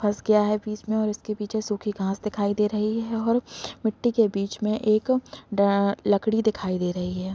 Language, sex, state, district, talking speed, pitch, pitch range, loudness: Hindi, female, Bihar, East Champaran, 210 wpm, 210 Hz, 200-220 Hz, -25 LUFS